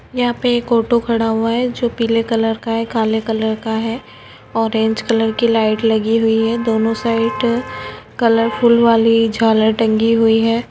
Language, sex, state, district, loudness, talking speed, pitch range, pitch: Hindi, female, Bihar, Gopalganj, -16 LUFS, 175 wpm, 225-235 Hz, 225 Hz